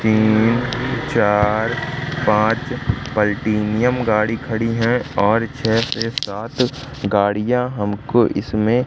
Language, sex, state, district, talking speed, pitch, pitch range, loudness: Hindi, male, Madhya Pradesh, Katni, 95 wpm, 115 Hz, 105-125 Hz, -19 LUFS